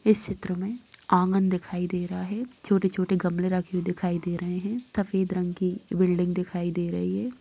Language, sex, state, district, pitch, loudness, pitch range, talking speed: Hindi, female, Bihar, Muzaffarpur, 185 Hz, -26 LUFS, 180-200 Hz, 195 wpm